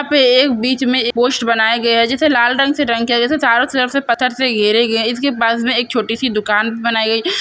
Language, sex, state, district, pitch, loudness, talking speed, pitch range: Hindi, male, Andhra Pradesh, Guntur, 240 Hz, -14 LUFS, 290 wpm, 230-260 Hz